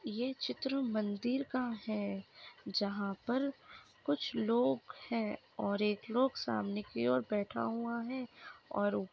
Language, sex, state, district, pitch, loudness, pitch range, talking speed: Hindi, female, Maharashtra, Solapur, 215 Hz, -36 LUFS, 205-245 Hz, 140 wpm